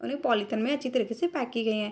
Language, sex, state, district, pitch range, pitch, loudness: Hindi, female, Bihar, Darbhanga, 220-270 Hz, 235 Hz, -28 LUFS